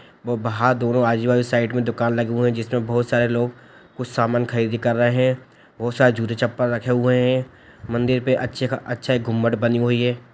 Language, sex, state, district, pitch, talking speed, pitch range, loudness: Hindi, male, Bihar, Sitamarhi, 120 Hz, 190 wpm, 120-125 Hz, -21 LUFS